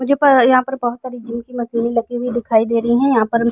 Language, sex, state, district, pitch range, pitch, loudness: Hindi, female, Uttar Pradesh, Jalaun, 235-255 Hz, 240 Hz, -16 LUFS